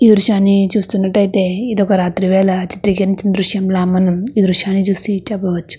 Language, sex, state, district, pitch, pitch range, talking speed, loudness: Telugu, female, Andhra Pradesh, Krishna, 195 Hz, 185-205 Hz, 145 wpm, -14 LUFS